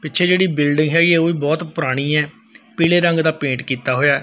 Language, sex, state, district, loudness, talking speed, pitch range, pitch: Punjabi, male, Punjab, Fazilka, -17 LUFS, 225 wpm, 145-170 Hz, 160 Hz